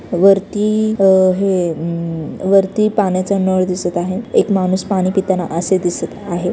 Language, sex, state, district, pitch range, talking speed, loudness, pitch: Marathi, female, Maharashtra, Chandrapur, 175-195 Hz, 145 wpm, -16 LUFS, 190 Hz